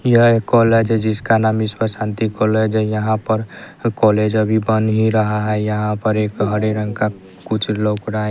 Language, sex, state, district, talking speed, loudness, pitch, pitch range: Hindi, male, Bihar, West Champaran, 195 wpm, -17 LUFS, 110 Hz, 105-110 Hz